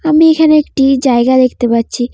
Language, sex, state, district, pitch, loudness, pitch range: Bengali, female, West Bengal, Cooch Behar, 265 Hz, -10 LUFS, 245-305 Hz